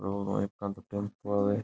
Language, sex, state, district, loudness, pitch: Marwari, male, Rajasthan, Nagaur, -33 LUFS, 100 Hz